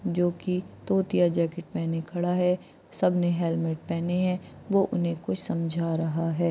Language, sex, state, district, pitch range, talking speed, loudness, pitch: Hindi, female, Maharashtra, Aurangabad, 165-180 Hz, 155 wpm, -27 LUFS, 175 Hz